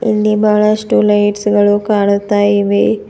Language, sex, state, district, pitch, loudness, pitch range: Kannada, female, Karnataka, Bidar, 210 Hz, -12 LUFS, 205-215 Hz